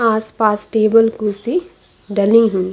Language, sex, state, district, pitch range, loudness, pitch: Hindi, female, Chhattisgarh, Bastar, 210-225 Hz, -16 LUFS, 220 Hz